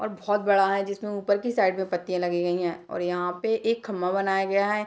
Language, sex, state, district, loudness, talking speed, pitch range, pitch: Hindi, female, Bihar, Darbhanga, -26 LUFS, 260 wpm, 180-210 Hz, 195 Hz